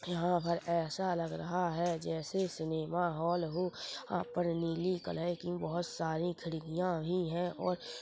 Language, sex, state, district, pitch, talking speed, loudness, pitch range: Hindi, male, Chhattisgarh, Korba, 170 Hz, 155 wpm, -36 LUFS, 165-175 Hz